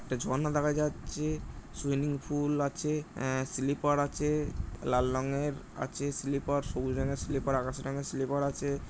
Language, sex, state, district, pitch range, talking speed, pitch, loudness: Bengali, male, West Bengal, Jhargram, 135-145 Hz, 140 wpm, 140 Hz, -32 LUFS